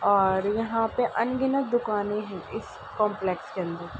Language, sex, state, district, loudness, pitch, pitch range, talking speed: Hindi, female, Uttar Pradesh, Ghazipur, -27 LUFS, 210 Hz, 190-230 Hz, 150 wpm